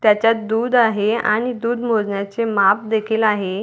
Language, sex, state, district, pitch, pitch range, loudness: Marathi, female, Maharashtra, Dhule, 220 Hz, 210-230 Hz, -18 LUFS